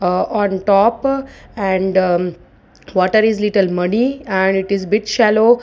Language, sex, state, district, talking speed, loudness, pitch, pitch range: English, female, Gujarat, Valsad, 140 wpm, -16 LUFS, 200 Hz, 190-220 Hz